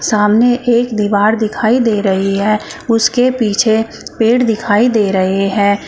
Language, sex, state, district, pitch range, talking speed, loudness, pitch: Hindi, female, Uttar Pradesh, Shamli, 205-235 Hz, 145 wpm, -13 LUFS, 220 Hz